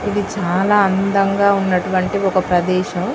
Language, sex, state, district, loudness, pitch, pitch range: Telugu, female, Telangana, Karimnagar, -16 LUFS, 195 Hz, 185-200 Hz